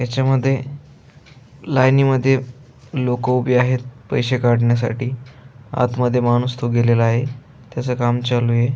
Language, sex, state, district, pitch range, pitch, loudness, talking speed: Marathi, male, Maharashtra, Aurangabad, 120-130 Hz, 125 Hz, -18 LUFS, 125 wpm